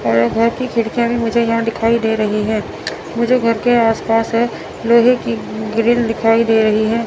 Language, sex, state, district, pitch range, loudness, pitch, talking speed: Hindi, female, Chandigarh, Chandigarh, 220-235 Hz, -16 LUFS, 230 Hz, 195 wpm